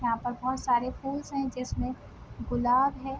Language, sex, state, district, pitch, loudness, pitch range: Hindi, female, Bihar, Sitamarhi, 255 Hz, -30 LUFS, 245-270 Hz